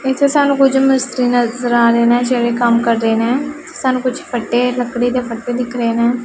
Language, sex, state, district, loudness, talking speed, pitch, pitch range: Punjabi, female, Punjab, Pathankot, -15 LUFS, 220 wpm, 245 Hz, 235-260 Hz